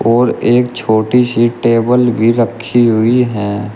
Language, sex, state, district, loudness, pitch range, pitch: Hindi, male, Uttar Pradesh, Shamli, -12 LUFS, 110-120 Hz, 120 Hz